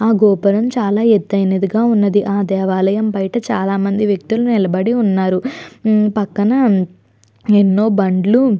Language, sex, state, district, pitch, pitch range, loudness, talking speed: Telugu, female, Andhra Pradesh, Chittoor, 205 Hz, 195-220 Hz, -15 LUFS, 120 wpm